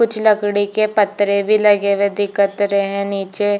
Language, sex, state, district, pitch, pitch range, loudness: Hindi, female, Chhattisgarh, Bilaspur, 205 Hz, 200-210 Hz, -16 LUFS